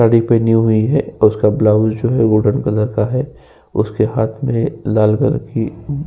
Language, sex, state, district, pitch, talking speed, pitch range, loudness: Hindi, male, Uttar Pradesh, Jyotiba Phule Nagar, 115 Hz, 190 wpm, 110-125 Hz, -15 LUFS